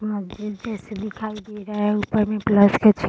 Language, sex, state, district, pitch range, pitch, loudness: Hindi, female, Bihar, Sitamarhi, 205-215 Hz, 210 Hz, -22 LUFS